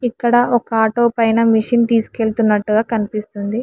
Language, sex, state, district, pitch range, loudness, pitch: Telugu, female, Telangana, Hyderabad, 220-235 Hz, -16 LUFS, 225 Hz